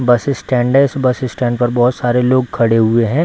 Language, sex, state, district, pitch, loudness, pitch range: Hindi, male, Bihar, Bhagalpur, 125 Hz, -14 LUFS, 120-130 Hz